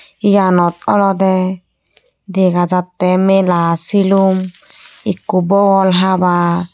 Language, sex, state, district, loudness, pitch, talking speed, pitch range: Chakma, female, Tripura, Unakoti, -13 LUFS, 185 Hz, 80 wpm, 180-195 Hz